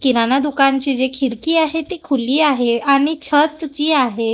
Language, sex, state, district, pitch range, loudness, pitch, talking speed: Marathi, female, Maharashtra, Gondia, 260-305 Hz, -16 LUFS, 275 Hz, 180 wpm